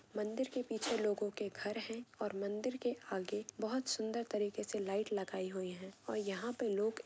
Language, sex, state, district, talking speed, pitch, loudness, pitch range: Hindi, female, Jharkhand, Jamtara, 195 wpm, 210 Hz, -40 LUFS, 205-230 Hz